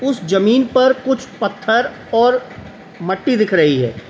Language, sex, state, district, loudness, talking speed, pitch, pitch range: Hindi, male, Uttar Pradesh, Lalitpur, -16 LUFS, 145 wpm, 225 Hz, 190-255 Hz